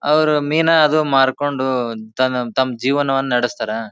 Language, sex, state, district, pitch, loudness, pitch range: Kannada, male, Karnataka, Bijapur, 135 Hz, -17 LUFS, 125-150 Hz